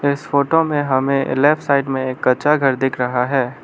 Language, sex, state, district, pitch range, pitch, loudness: Hindi, male, Arunachal Pradesh, Lower Dibang Valley, 130-145 Hz, 135 Hz, -17 LUFS